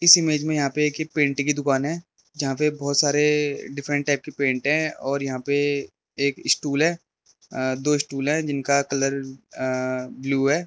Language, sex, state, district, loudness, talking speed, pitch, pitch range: Hindi, male, Arunachal Pradesh, Lower Dibang Valley, -23 LUFS, 175 wpm, 140 Hz, 135-150 Hz